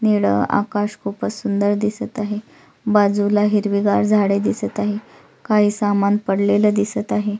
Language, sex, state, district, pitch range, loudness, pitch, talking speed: Marathi, female, Maharashtra, Solapur, 200-210 Hz, -19 LUFS, 205 Hz, 130 wpm